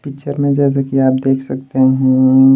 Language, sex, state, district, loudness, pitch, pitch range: Hindi, male, Maharashtra, Washim, -14 LUFS, 135 Hz, 130-140 Hz